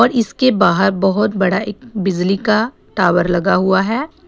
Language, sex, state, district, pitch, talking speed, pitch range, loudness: Hindi, female, Assam, Sonitpur, 200 Hz, 170 wpm, 190-230 Hz, -16 LUFS